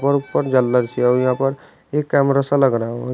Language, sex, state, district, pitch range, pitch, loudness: Hindi, male, Uttar Pradesh, Shamli, 125-140 Hz, 135 Hz, -18 LUFS